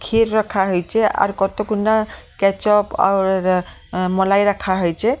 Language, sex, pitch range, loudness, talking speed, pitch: Bengali, female, 190-215 Hz, -18 LUFS, 115 wpm, 195 Hz